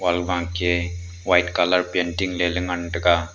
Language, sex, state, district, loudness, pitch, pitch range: Wancho, male, Arunachal Pradesh, Longding, -22 LUFS, 90 Hz, 85-90 Hz